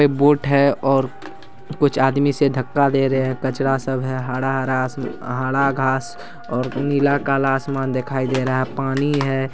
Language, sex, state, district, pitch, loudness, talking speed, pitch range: Hindi, male, Bihar, Saharsa, 135 Hz, -20 LUFS, 175 wpm, 130-140 Hz